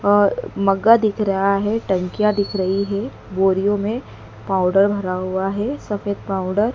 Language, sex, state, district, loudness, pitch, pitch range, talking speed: Hindi, female, Madhya Pradesh, Dhar, -19 LUFS, 200 Hz, 190-210 Hz, 160 wpm